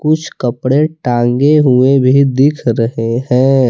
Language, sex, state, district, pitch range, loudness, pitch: Hindi, male, Jharkhand, Palamu, 120-145 Hz, -12 LUFS, 130 Hz